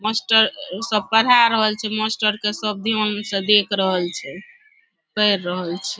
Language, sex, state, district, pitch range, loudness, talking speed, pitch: Maithili, female, Bihar, Saharsa, 195-220 Hz, -19 LUFS, 170 wpm, 210 Hz